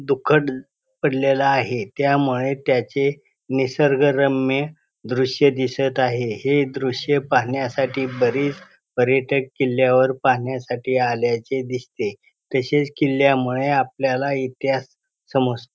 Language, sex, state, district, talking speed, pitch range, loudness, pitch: Marathi, male, Maharashtra, Pune, 90 wpm, 130-140 Hz, -20 LUFS, 135 Hz